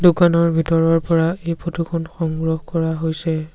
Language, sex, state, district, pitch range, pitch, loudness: Assamese, male, Assam, Sonitpur, 160-170 Hz, 165 Hz, -19 LUFS